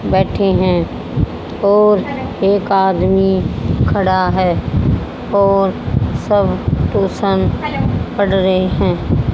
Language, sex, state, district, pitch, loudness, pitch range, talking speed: Hindi, female, Haryana, Jhajjar, 195 Hz, -15 LUFS, 190-200 Hz, 85 wpm